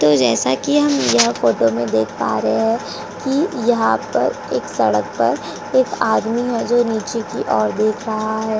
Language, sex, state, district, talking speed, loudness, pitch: Hindi, female, Uttar Pradesh, Jyotiba Phule Nagar, 190 wpm, -18 LUFS, 215 Hz